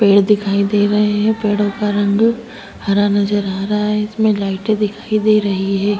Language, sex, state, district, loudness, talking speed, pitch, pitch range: Hindi, female, Chhattisgarh, Sukma, -16 LUFS, 200 wpm, 205 Hz, 200-210 Hz